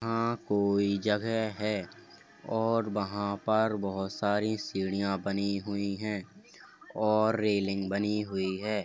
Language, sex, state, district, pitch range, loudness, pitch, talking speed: Hindi, male, Uttar Pradesh, Hamirpur, 100-110 Hz, -30 LUFS, 105 Hz, 120 wpm